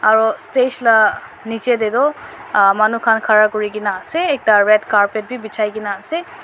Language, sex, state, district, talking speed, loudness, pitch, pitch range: Nagamese, female, Nagaland, Dimapur, 175 wpm, -16 LUFS, 215 Hz, 210-240 Hz